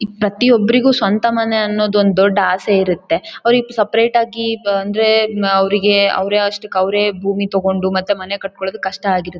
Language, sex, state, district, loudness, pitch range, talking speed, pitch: Kannada, female, Karnataka, Bellary, -15 LUFS, 195-220 Hz, 130 wpm, 205 Hz